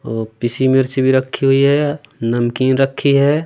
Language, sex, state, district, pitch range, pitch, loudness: Hindi, male, Madhya Pradesh, Katni, 120-140 Hz, 130 Hz, -16 LUFS